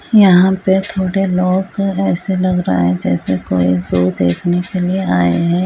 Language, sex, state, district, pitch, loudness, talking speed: Hindi, female, Uttar Pradesh, Hamirpur, 180 Hz, -15 LUFS, 170 wpm